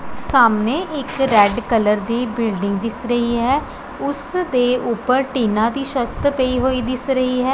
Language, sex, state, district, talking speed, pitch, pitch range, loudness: Punjabi, female, Punjab, Pathankot, 160 wpm, 250 Hz, 230-265 Hz, -18 LUFS